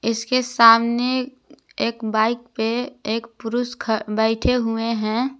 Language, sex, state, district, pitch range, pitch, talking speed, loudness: Hindi, female, Jharkhand, Garhwa, 225-245 Hz, 230 Hz, 120 wpm, -20 LUFS